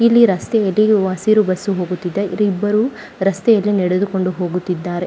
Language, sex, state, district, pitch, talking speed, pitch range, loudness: Kannada, female, Karnataka, Mysore, 195 Hz, 155 wpm, 180-215 Hz, -17 LUFS